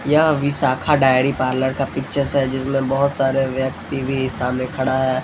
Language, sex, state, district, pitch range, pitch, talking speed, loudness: Hindi, male, Bihar, Patna, 130-140 Hz, 135 Hz, 170 wpm, -19 LUFS